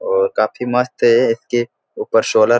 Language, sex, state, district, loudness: Hindi, male, Bihar, Supaul, -16 LUFS